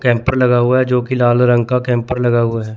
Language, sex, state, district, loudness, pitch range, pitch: Hindi, male, Chandigarh, Chandigarh, -14 LUFS, 120-125 Hz, 125 Hz